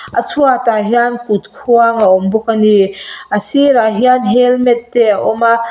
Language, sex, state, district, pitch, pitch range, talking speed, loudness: Mizo, female, Mizoram, Aizawl, 230 Hz, 215-245 Hz, 190 wpm, -12 LUFS